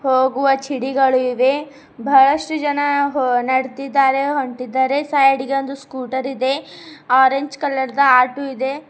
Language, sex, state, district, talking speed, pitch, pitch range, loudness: Kannada, female, Karnataka, Bidar, 100 wpm, 270 Hz, 260-280 Hz, -17 LUFS